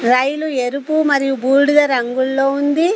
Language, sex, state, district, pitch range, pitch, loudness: Telugu, female, Telangana, Komaram Bheem, 260-290 Hz, 275 Hz, -16 LUFS